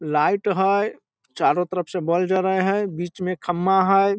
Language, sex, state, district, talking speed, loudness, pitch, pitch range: Maithili, male, Bihar, Samastipur, 170 wpm, -21 LUFS, 185 Hz, 175-195 Hz